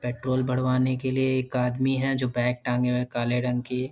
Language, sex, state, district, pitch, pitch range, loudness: Hindi, male, Bihar, Lakhisarai, 125 Hz, 125-130 Hz, -26 LUFS